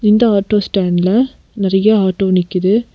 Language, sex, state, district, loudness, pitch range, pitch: Tamil, female, Tamil Nadu, Nilgiris, -14 LUFS, 190-215 Hz, 200 Hz